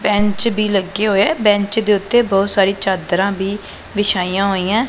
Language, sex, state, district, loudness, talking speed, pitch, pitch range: Punjabi, female, Punjab, Pathankot, -16 LUFS, 160 wpm, 200 Hz, 195-210 Hz